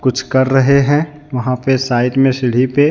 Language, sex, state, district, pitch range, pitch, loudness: Hindi, male, Jharkhand, Deoghar, 125-140 Hz, 130 Hz, -14 LUFS